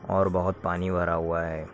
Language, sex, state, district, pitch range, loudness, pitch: Hindi, male, Uttar Pradesh, Jyotiba Phule Nagar, 85-95 Hz, -27 LUFS, 90 Hz